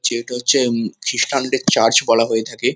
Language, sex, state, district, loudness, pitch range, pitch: Bengali, male, West Bengal, Kolkata, -17 LUFS, 115-125 Hz, 115 Hz